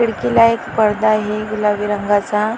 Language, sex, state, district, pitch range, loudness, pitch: Marathi, female, Maharashtra, Dhule, 210-220 Hz, -16 LUFS, 215 Hz